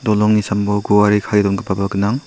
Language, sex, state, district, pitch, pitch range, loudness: Garo, male, Meghalaya, South Garo Hills, 105 Hz, 100-105 Hz, -16 LUFS